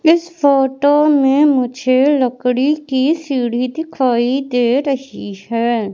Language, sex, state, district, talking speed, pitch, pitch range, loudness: Hindi, male, Madhya Pradesh, Katni, 110 wpm, 265 Hz, 250-290 Hz, -15 LUFS